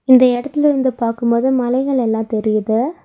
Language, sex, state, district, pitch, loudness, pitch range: Tamil, female, Tamil Nadu, Nilgiris, 245 Hz, -16 LUFS, 230-265 Hz